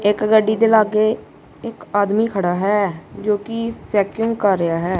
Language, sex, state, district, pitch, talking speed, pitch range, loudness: Punjabi, male, Punjab, Kapurthala, 210 Hz, 170 wpm, 200-220 Hz, -18 LUFS